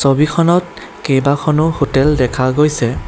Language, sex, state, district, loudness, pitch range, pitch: Assamese, male, Assam, Kamrup Metropolitan, -14 LUFS, 135-155 Hz, 145 Hz